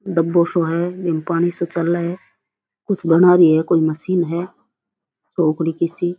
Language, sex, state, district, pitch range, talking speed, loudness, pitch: Rajasthani, female, Rajasthan, Churu, 165-175 Hz, 185 wpm, -18 LUFS, 170 Hz